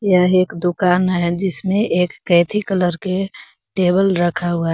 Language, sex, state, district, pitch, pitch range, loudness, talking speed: Hindi, female, Jharkhand, Garhwa, 180 Hz, 175-190 Hz, -17 LUFS, 165 wpm